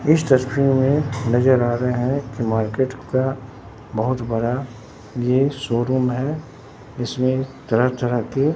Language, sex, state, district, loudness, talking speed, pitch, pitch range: Hindi, male, Bihar, Katihar, -20 LUFS, 135 wpm, 130 Hz, 120-135 Hz